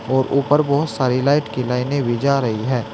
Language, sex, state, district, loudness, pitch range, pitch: Hindi, male, Uttar Pradesh, Saharanpur, -19 LUFS, 125-140 Hz, 130 Hz